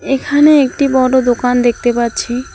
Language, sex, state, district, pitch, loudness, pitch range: Bengali, female, West Bengal, Alipurduar, 255 Hz, -12 LUFS, 245-275 Hz